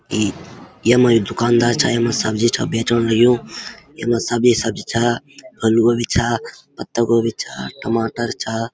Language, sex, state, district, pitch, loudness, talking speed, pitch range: Garhwali, male, Uttarakhand, Uttarkashi, 115 Hz, -18 LUFS, 160 wpm, 115-120 Hz